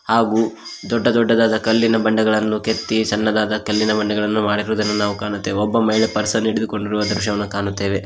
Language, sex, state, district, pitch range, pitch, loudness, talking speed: Kannada, male, Karnataka, Koppal, 105-110 Hz, 110 Hz, -18 LUFS, 140 wpm